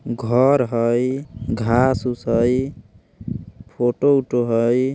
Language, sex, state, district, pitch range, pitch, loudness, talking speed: Bajjika, male, Bihar, Vaishali, 115-130 Hz, 120 Hz, -19 LUFS, 110 wpm